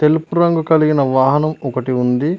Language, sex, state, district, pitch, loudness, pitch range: Telugu, male, Telangana, Mahabubabad, 150 Hz, -15 LUFS, 130-160 Hz